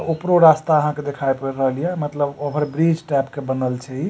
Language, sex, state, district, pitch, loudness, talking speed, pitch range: Maithili, male, Bihar, Supaul, 145 Hz, -19 LUFS, 235 wpm, 135-160 Hz